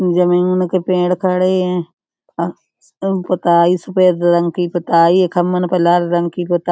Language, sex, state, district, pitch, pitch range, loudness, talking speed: Hindi, female, Uttar Pradesh, Budaun, 180 Hz, 175-185 Hz, -15 LUFS, 170 wpm